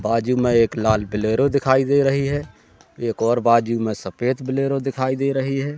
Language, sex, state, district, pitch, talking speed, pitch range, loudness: Hindi, male, Madhya Pradesh, Katni, 125 Hz, 195 wpm, 115-135 Hz, -20 LUFS